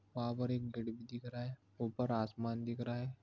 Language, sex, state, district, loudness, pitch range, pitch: Hindi, male, Bihar, Begusarai, -41 LUFS, 115-125 Hz, 120 Hz